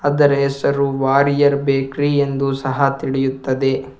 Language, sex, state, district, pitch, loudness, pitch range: Kannada, male, Karnataka, Bangalore, 140 Hz, -17 LUFS, 135-140 Hz